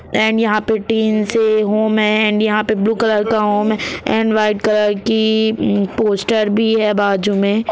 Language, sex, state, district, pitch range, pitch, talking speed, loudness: Hindi, male, Jharkhand, Jamtara, 210-220 Hz, 215 Hz, 180 wpm, -15 LUFS